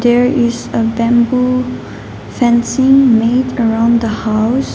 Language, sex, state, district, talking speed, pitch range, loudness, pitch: English, female, Nagaland, Dimapur, 115 wpm, 230-250 Hz, -13 LUFS, 240 Hz